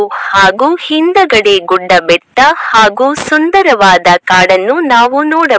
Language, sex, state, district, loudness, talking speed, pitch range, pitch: Kannada, female, Karnataka, Koppal, -8 LUFS, 95 wpm, 185-310 Hz, 225 Hz